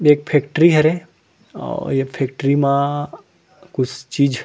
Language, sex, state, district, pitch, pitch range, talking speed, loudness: Chhattisgarhi, male, Chhattisgarh, Rajnandgaon, 145 Hz, 135-160 Hz, 120 wpm, -18 LUFS